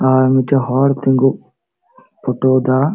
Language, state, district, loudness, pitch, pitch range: Santali, Jharkhand, Sahebganj, -15 LUFS, 130 Hz, 130-135 Hz